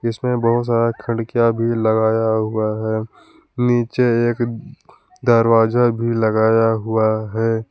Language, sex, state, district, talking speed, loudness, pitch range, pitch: Hindi, male, Jharkhand, Palamu, 115 wpm, -18 LUFS, 110-120 Hz, 115 Hz